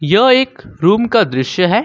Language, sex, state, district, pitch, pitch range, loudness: Hindi, male, Jharkhand, Ranchi, 200 Hz, 175-235 Hz, -13 LUFS